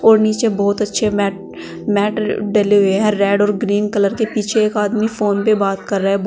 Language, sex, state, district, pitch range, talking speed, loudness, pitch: Hindi, female, Uttar Pradesh, Saharanpur, 200-215 Hz, 240 wpm, -16 LUFS, 210 Hz